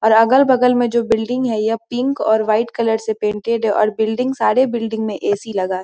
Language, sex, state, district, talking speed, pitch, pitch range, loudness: Hindi, female, Bihar, Muzaffarpur, 225 wpm, 225 Hz, 215-245 Hz, -17 LUFS